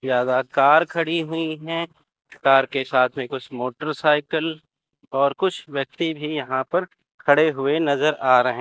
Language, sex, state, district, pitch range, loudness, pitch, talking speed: Hindi, male, Chandigarh, Chandigarh, 135-160 Hz, -21 LUFS, 150 Hz, 155 wpm